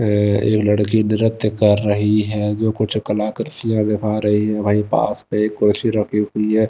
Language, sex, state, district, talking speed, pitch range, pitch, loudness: Hindi, male, Maharashtra, Gondia, 190 wpm, 105-110 Hz, 105 Hz, -18 LUFS